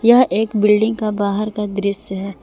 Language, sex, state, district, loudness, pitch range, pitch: Hindi, female, Jharkhand, Palamu, -17 LUFS, 200-220 Hz, 210 Hz